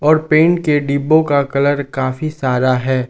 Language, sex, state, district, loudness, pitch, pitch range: Hindi, male, Jharkhand, Garhwa, -15 LUFS, 145 Hz, 130-155 Hz